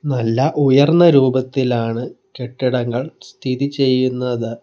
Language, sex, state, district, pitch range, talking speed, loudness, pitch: Malayalam, male, Kerala, Kollam, 125-135 Hz, 80 wpm, -16 LUFS, 130 Hz